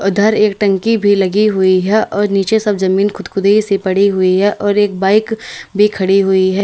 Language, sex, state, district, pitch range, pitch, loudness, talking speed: Hindi, female, Uttar Pradesh, Lalitpur, 195-210 Hz, 200 Hz, -13 LUFS, 210 wpm